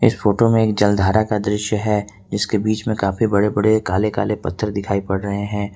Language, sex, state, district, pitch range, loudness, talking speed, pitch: Hindi, male, Jharkhand, Ranchi, 100-110 Hz, -19 LUFS, 220 wpm, 105 Hz